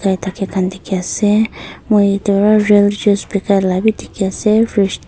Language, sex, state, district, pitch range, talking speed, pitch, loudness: Nagamese, female, Nagaland, Kohima, 190-210 Hz, 175 wpm, 200 Hz, -15 LUFS